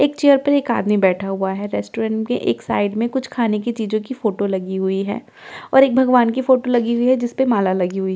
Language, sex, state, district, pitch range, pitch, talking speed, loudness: Hindi, female, Delhi, New Delhi, 195-255 Hz, 225 Hz, 265 wpm, -18 LUFS